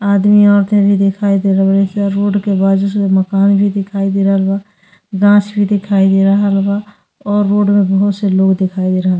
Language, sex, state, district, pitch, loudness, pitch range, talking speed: Bhojpuri, female, Uttar Pradesh, Ghazipur, 200 Hz, -12 LUFS, 195-205 Hz, 220 wpm